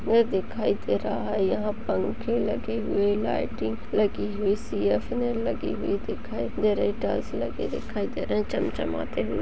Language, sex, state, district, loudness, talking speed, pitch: Hindi, female, Chhattisgarh, Raigarh, -27 LUFS, 190 wpm, 205 Hz